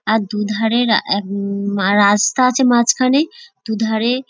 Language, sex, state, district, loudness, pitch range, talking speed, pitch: Bengali, female, West Bengal, Dakshin Dinajpur, -16 LUFS, 205-250 Hz, 140 wpm, 220 Hz